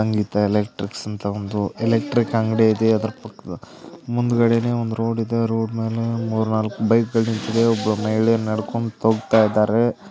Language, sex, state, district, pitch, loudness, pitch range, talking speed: Kannada, male, Karnataka, Belgaum, 110 Hz, -20 LUFS, 110-115 Hz, 150 wpm